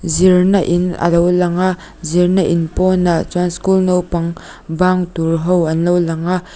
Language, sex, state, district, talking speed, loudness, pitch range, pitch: Mizo, female, Mizoram, Aizawl, 175 wpm, -15 LUFS, 170-185 Hz, 175 Hz